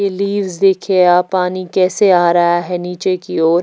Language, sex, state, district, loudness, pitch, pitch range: Hindi, female, Chhattisgarh, Raipur, -14 LUFS, 185 Hz, 175-190 Hz